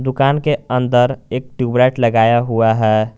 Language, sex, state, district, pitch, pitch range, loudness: Hindi, male, Jharkhand, Garhwa, 125 Hz, 115-130 Hz, -15 LUFS